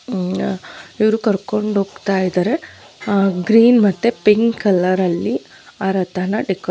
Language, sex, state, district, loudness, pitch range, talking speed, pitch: Kannada, female, Karnataka, Dharwad, -17 LUFS, 190-220 Hz, 125 wpm, 200 Hz